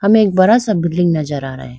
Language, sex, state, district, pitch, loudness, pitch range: Hindi, female, Arunachal Pradesh, Lower Dibang Valley, 175 Hz, -14 LUFS, 145-210 Hz